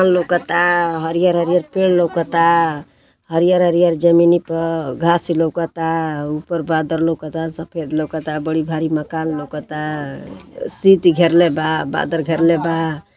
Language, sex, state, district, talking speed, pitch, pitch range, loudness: Bhojpuri, female, Uttar Pradesh, Gorakhpur, 120 wpm, 165 Hz, 160-170 Hz, -17 LUFS